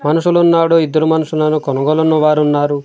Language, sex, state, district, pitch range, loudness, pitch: Telugu, male, Andhra Pradesh, Manyam, 150-160 Hz, -13 LUFS, 155 Hz